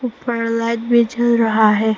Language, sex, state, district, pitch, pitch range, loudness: Hindi, female, Arunachal Pradesh, Papum Pare, 230 Hz, 220-235 Hz, -17 LUFS